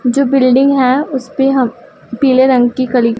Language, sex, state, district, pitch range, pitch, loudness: Hindi, female, Punjab, Pathankot, 250-270 Hz, 260 Hz, -12 LUFS